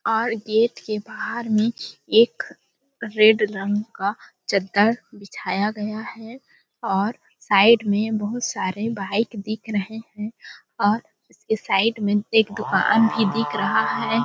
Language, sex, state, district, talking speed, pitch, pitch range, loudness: Hindi, female, Chhattisgarh, Balrampur, 135 wpm, 215 Hz, 205-225 Hz, -22 LUFS